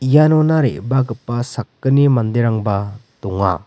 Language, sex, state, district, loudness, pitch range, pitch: Garo, male, Meghalaya, West Garo Hills, -17 LUFS, 110-135 Hz, 120 Hz